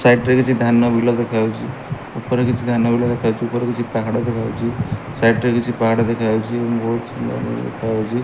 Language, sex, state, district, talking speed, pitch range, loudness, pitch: Odia, male, Odisha, Malkangiri, 165 wpm, 115-120 Hz, -19 LUFS, 120 Hz